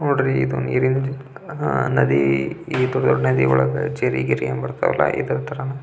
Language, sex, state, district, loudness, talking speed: Kannada, male, Karnataka, Belgaum, -20 LUFS, 145 wpm